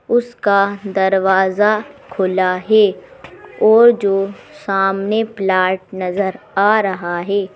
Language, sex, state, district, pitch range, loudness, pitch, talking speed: Hindi, female, Madhya Pradesh, Bhopal, 190-215 Hz, -16 LUFS, 195 Hz, 105 wpm